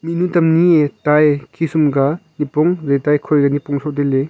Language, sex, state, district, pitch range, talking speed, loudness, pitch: Wancho, male, Arunachal Pradesh, Longding, 145-165 Hz, 180 wpm, -16 LUFS, 150 Hz